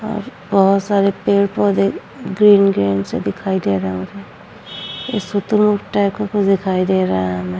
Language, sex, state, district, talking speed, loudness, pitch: Hindi, female, Bihar, Vaishali, 175 wpm, -17 LUFS, 195 Hz